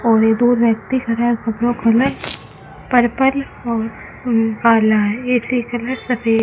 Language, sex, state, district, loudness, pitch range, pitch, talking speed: Hindi, female, Rajasthan, Bikaner, -17 LUFS, 225-245 Hz, 235 Hz, 150 wpm